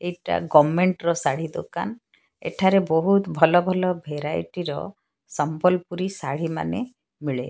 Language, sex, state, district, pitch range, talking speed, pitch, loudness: Odia, female, Odisha, Sambalpur, 155-185 Hz, 105 wpm, 170 Hz, -23 LUFS